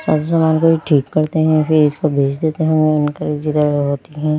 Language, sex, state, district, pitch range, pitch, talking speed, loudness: Hindi, female, Delhi, New Delhi, 150-160 Hz, 155 Hz, 205 wpm, -16 LUFS